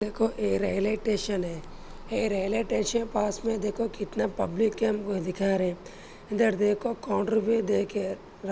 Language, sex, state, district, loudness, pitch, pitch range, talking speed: Hindi, male, Maharashtra, Sindhudurg, -28 LUFS, 210 Hz, 195-225 Hz, 155 wpm